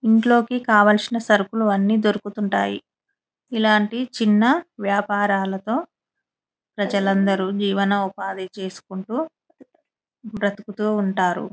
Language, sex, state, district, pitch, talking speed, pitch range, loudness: Telugu, female, Telangana, Nalgonda, 210 Hz, 70 wpm, 200-230 Hz, -21 LUFS